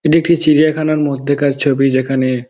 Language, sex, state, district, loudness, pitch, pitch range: Bengali, male, West Bengal, Dakshin Dinajpur, -14 LUFS, 145 Hz, 135-155 Hz